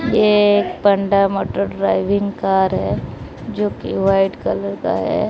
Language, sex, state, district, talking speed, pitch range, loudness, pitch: Hindi, female, Odisha, Malkangiri, 145 wpm, 190-205 Hz, -17 LUFS, 195 Hz